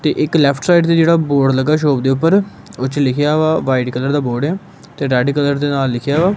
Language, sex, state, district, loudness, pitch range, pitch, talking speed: Punjabi, male, Punjab, Kapurthala, -15 LUFS, 135-160 Hz, 145 Hz, 255 wpm